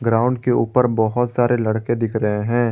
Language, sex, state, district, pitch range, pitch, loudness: Hindi, male, Jharkhand, Garhwa, 110-120 Hz, 120 Hz, -19 LUFS